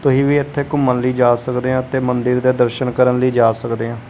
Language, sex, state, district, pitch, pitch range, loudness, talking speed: Punjabi, male, Punjab, Kapurthala, 125 Hz, 120-130 Hz, -16 LUFS, 250 wpm